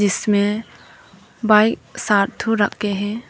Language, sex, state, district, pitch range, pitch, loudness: Hindi, female, Arunachal Pradesh, Papum Pare, 205-220 Hz, 210 Hz, -19 LUFS